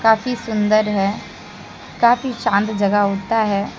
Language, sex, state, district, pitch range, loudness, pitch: Hindi, female, Jharkhand, Deoghar, 200-230 Hz, -18 LUFS, 215 Hz